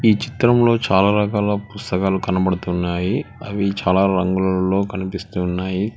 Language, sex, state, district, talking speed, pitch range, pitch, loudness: Telugu, male, Telangana, Hyderabad, 100 wpm, 95-105 Hz, 95 Hz, -19 LUFS